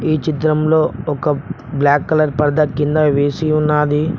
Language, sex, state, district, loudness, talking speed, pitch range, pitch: Telugu, male, Telangana, Mahabubabad, -16 LUFS, 130 wpm, 145-155 Hz, 150 Hz